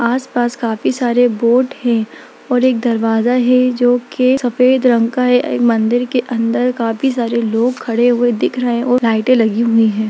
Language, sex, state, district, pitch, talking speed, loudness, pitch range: Hindi, female, Bihar, Darbhanga, 245 Hz, 190 wpm, -14 LUFS, 230-250 Hz